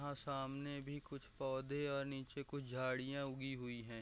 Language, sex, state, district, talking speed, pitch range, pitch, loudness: Hindi, male, Chhattisgarh, Raigarh, 180 wpm, 130-140 Hz, 135 Hz, -45 LUFS